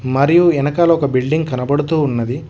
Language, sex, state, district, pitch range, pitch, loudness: Telugu, male, Telangana, Hyderabad, 130-160 Hz, 145 Hz, -15 LUFS